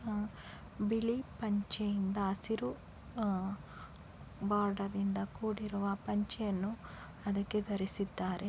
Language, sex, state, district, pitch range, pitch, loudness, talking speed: Kannada, female, Karnataka, Chamarajanagar, 200-215 Hz, 205 Hz, -36 LUFS, 65 wpm